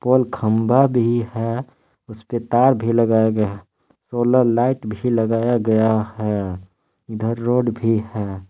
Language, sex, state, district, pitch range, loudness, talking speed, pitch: Hindi, male, Jharkhand, Palamu, 110-120 Hz, -19 LUFS, 135 wpm, 115 Hz